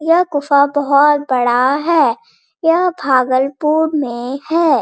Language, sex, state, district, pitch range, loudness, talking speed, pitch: Hindi, female, Bihar, Bhagalpur, 270-325 Hz, -14 LUFS, 135 wpm, 290 Hz